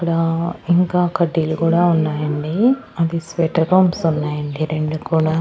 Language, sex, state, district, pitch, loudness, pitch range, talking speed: Telugu, female, Andhra Pradesh, Annamaya, 165 Hz, -18 LUFS, 155-175 Hz, 110 wpm